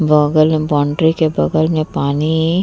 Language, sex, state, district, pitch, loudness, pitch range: Hindi, female, Bihar, Vaishali, 155 Hz, -15 LUFS, 150-160 Hz